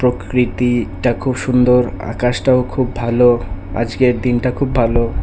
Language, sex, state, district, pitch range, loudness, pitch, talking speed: Bengali, male, Tripura, West Tripura, 115-125 Hz, -16 LUFS, 120 Hz, 115 wpm